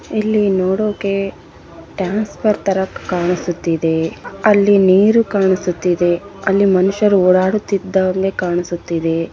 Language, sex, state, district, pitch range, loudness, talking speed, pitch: Kannada, female, Karnataka, Bellary, 180-200 Hz, -16 LUFS, 75 wpm, 190 Hz